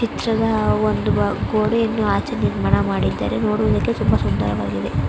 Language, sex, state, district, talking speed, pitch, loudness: Kannada, female, Karnataka, Mysore, 105 wpm, 105 Hz, -19 LUFS